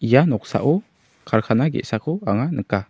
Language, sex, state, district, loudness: Garo, male, Meghalaya, South Garo Hills, -21 LUFS